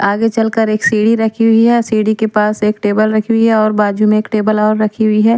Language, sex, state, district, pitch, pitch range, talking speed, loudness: Hindi, female, Punjab, Pathankot, 215 Hz, 215-225 Hz, 280 wpm, -13 LUFS